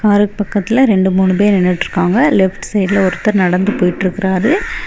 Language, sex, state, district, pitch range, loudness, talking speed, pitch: Tamil, female, Tamil Nadu, Kanyakumari, 185-205 Hz, -13 LUFS, 135 wpm, 195 Hz